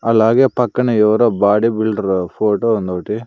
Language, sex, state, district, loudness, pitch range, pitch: Telugu, male, Andhra Pradesh, Sri Satya Sai, -15 LUFS, 100-115 Hz, 110 Hz